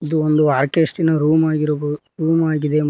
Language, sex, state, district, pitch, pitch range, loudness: Kannada, male, Karnataka, Koppal, 155 Hz, 150-160 Hz, -17 LUFS